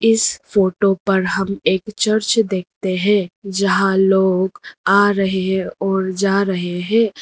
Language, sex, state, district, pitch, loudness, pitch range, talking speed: Hindi, female, Arunachal Pradesh, Lower Dibang Valley, 195 Hz, -17 LUFS, 190-205 Hz, 140 wpm